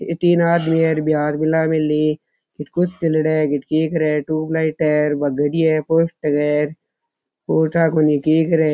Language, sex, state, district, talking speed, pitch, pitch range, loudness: Rajasthani, male, Rajasthan, Churu, 165 wpm, 155 Hz, 150-160 Hz, -18 LUFS